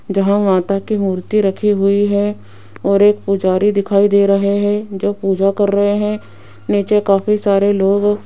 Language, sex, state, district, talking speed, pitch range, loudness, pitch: Hindi, female, Rajasthan, Jaipur, 175 wpm, 195-205 Hz, -15 LUFS, 200 Hz